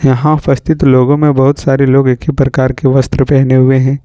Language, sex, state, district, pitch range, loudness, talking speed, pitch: Hindi, male, Jharkhand, Ranchi, 130-140 Hz, -10 LUFS, 220 wpm, 135 Hz